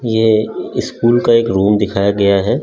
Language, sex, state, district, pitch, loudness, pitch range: Hindi, male, Delhi, New Delhi, 110 Hz, -14 LUFS, 100-115 Hz